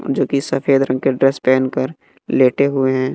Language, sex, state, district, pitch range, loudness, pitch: Hindi, male, Bihar, West Champaran, 130-135 Hz, -17 LUFS, 135 Hz